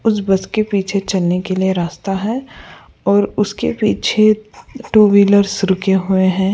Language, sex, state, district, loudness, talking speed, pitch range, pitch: Hindi, female, Goa, North and South Goa, -15 LUFS, 155 wpm, 190-210 Hz, 200 Hz